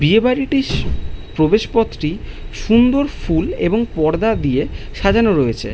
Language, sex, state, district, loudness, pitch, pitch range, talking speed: Bengali, male, West Bengal, Malda, -17 LUFS, 190 Hz, 140-230 Hz, 85 wpm